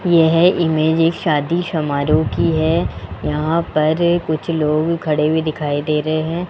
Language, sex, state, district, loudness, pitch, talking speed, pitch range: Hindi, male, Rajasthan, Jaipur, -17 LUFS, 155 Hz, 155 wpm, 150-165 Hz